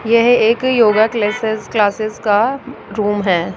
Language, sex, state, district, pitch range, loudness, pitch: Hindi, female, Rajasthan, Jaipur, 210-230 Hz, -15 LUFS, 220 Hz